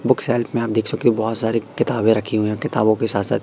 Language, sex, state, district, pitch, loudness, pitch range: Hindi, male, Madhya Pradesh, Katni, 115 Hz, -19 LUFS, 110-120 Hz